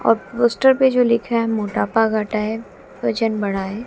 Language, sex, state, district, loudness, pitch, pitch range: Hindi, female, Haryana, Jhajjar, -19 LUFS, 225 Hz, 215-235 Hz